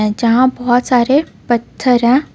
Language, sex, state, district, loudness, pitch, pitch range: Hindi, female, Jharkhand, Ranchi, -14 LUFS, 245 Hz, 240-255 Hz